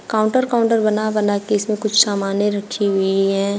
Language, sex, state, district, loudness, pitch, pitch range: Hindi, female, Uttar Pradesh, Shamli, -18 LUFS, 210 Hz, 200-215 Hz